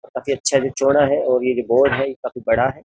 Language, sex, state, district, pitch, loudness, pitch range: Hindi, male, Uttar Pradesh, Jyotiba Phule Nagar, 135 Hz, -18 LUFS, 125-140 Hz